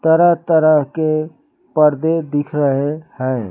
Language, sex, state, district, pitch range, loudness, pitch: Hindi, male, Uttar Pradesh, Lucknow, 145-160 Hz, -16 LUFS, 155 Hz